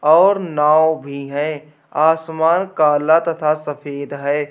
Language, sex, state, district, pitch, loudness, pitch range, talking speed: Hindi, male, Uttar Pradesh, Hamirpur, 150 Hz, -17 LUFS, 145-160 Hz, 120 wpm